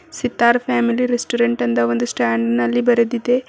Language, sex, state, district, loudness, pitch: Kannada, female, Karnataka, Bidar, -18 LUFS, 235 Hz